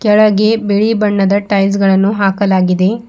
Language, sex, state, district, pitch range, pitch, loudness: Kannada, female, Karnataka, Bidar, 195-210 Hz, 200 Hz, -12 LUFS